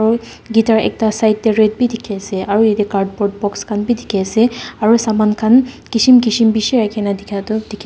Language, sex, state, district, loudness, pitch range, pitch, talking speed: Nagamese, female, Nagaland, Dimapur, -15 LUFS, 210-230 Hz, 220 Hz, 220 wpm